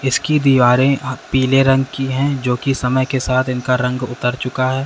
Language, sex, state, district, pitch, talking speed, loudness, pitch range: Hindi, male, Uttar Pradesh, Lalitpur, 130 Hz, 195 wpm, -16 LUFS, 125-135 Hz